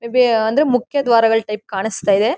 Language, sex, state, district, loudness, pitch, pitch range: Kannada, female, Karnataka, Mysore, -16 LUFS, 225 Hz, 215-250 Hz